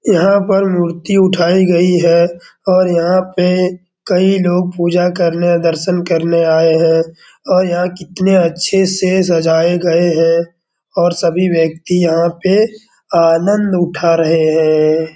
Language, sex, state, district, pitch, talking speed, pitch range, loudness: Hindi, male, Bihar, Darbhanga, 175 Hz, 135 wpm, 170-185 Hz, -13 LUFS